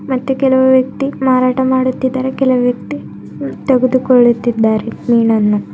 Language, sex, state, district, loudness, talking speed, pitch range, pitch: Kannada, female, Karnataka, Bidar, -13 LUFS, 95 wpm, 230-260 Hz, 255 Hz